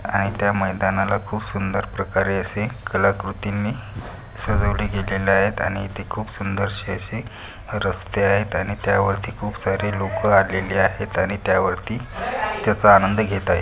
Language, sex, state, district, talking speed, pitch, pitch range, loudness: Marathi, male, Maharashtra, Pune, 145 wpm, 100 Hz, 95-105 Hz, -21 LUFS